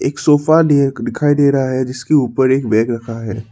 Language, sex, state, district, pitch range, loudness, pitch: Hindi, male, Assam, Sonitpur, 115-145 Hz, -15 LUFS, 130 Hz